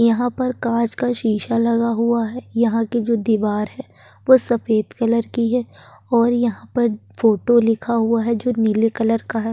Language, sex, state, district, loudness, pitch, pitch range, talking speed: Hindi, female, Uttar Pradesh, Jyotiba Phule Nagar, -19 LUFS, 230 Hz, 225-240 Hz, 190 wpm